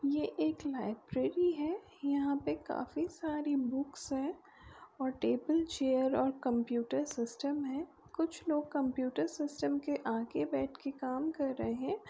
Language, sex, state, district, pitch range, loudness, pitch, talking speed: Bhojpuri, female, Uttar Pradesh, Deoria, 255-310 Hz, -36 LUFS, 280 Hz, 145 wpm